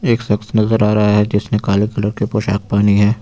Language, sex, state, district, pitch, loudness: Hindi, male, Uttar Pradesh, Lucknow, 105 Hz, -15 LUFS